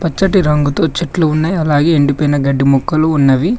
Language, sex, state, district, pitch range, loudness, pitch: Telugu, male, Telangana, Mahabubabad, 145-165 Hz, -13 LUFS, 155 Hz